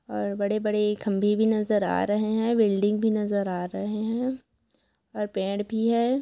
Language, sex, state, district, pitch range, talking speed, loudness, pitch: Hindi, female, Chhattisgarh, Korba, 205-220 Hz, 185 wpm, -25 LUFS, 210 Hz